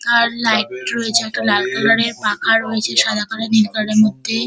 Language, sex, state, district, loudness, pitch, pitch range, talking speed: Bengali, female, West Bengal, Dakshin Dinajpur, -16 LUFS, 225 Hz, 215-230 Hz, 230 wpm